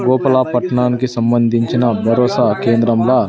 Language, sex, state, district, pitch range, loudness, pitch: Telugu, male, Andhra Pradesh, Sri Satya Sai, 115-125 Hz, -14 LUFS, 120 Hz